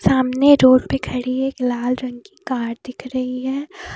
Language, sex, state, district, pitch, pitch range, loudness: Hindi, female, Jharkhand, Deoghar, 255 Hz, 250-265 Hz, -19 LUFS